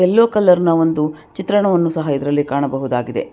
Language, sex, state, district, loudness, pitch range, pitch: Kannada, female, Karnataka, Bangalore, -16 LUFS, 145-185 Hz, 160 Hz